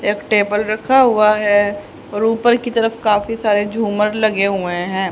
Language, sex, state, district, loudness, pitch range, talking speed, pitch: Hindi, female, Haryana, Charkhi Dadri, -16 LUFS, 205-225 Hz, 175 wpm, 210 Hz